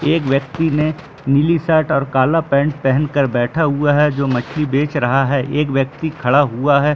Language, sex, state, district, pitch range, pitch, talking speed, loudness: Hindi, male, Uttar Pradesh, Muzaffarnagar, 135-155 Hz, 145 Hz, 200 wpm, -16 LUFS